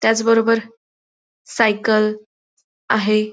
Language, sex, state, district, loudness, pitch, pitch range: Marathi, female, Maharashtra, Dhule, -17 LUFS, 220 Hz, 215-230 Hz